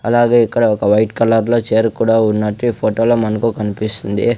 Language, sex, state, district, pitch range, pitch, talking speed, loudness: Telugu, male, Andhra Pradesh, Sri Satya Sai, 110-120 Hz, 115 Hz, 190 wpm, -15 LUFS